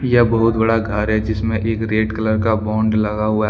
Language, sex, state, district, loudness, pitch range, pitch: Hindi, male, Jharkhand, Deoghar, -18 LUFS, 110-115 Hz, 110 Hz